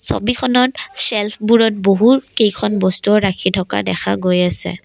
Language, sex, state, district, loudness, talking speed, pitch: Assamese, female, Assam, Kamrup Metropolitan, -15 LUFS, 110 wpm, 205 Hz